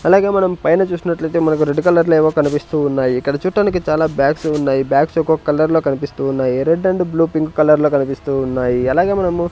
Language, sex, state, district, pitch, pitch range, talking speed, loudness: Telugu, male, Andhra Pradesh, Sri Satya Sai, 155 Hz, 140-170 Hz, 215 wpm, -16 LUFS